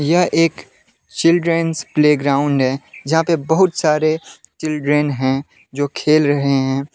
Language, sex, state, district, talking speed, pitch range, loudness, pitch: Hindi, male, Jharkhand, Deoghar, 130 wpm, 140-165 Hz, -17 LUFS, 150 Hz